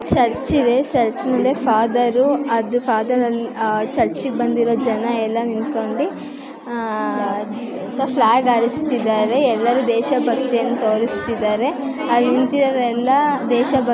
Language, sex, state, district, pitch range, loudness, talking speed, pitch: Kannada, female, Karnataka, Chamarajanagar, 230-265 Hz, -18 LUFS, 110 wpm, 245 Hz